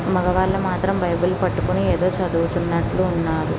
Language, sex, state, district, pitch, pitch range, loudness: Telugu, female, Andhra Pradesh, Guntur, 180 Hz, 170-185 Hz, -21 LUFS